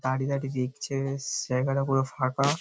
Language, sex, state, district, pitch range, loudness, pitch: Bengali, male, West Bengal, Paschim Medinipur, 130-140 Hz, -28 LUFS, 135 Hz